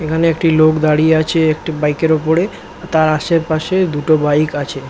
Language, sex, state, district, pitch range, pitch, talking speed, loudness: Bengali, male, West Bengal, Kolkata, 155-165 Hz, 155 Hz, 185 wpm, -14 LUFS